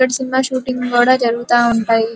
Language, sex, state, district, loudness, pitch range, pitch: Telugu, female, Andhra Pradesh, Guntur, -15 LUFS, 235-255 Hz, 245 Hz